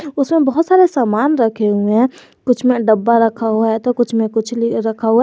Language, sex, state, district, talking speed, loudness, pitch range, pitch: Hindi, male, Jharkhand, Garhwa, 230 wpm, -15 LUFS, 225-260 Hz, 235 Hz